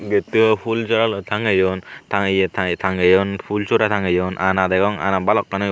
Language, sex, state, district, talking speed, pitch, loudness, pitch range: Chakma, male, Tripura, Unakoti, 170 wpm, 100 Hz, -18 LUFS, 95-105 Hz